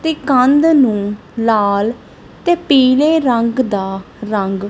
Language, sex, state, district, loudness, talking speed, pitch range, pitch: Punjabi, female, Punjab, Kapurthala, -14 LUFS, 125 wpm, 205-280 Hz, 235 Hz